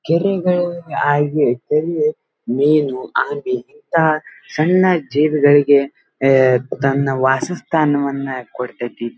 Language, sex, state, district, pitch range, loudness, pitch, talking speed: Kannada, male, Karnataka, Dharwad, 135-170 Hz, -17 LUFS, 145 Hz, 80 wpm